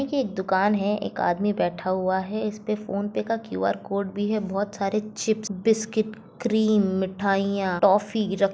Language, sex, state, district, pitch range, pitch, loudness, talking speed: Hindi, female, Jharkhand, Jamtara, 195-215 Hz, 205 Hz, -25 LUFS, 160 wpm